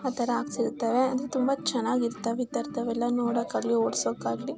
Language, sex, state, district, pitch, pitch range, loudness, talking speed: Kannada, male, Karnataka, Mysore, 240 Hz, 235-255 Hz, -28 LUFS, 170 wpm